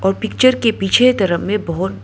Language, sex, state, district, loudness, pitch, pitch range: Hindi, female, Arunachal Pradesh, Lower Dibang Valley, -15 LUFS, 195 Hz, 190-225 Hz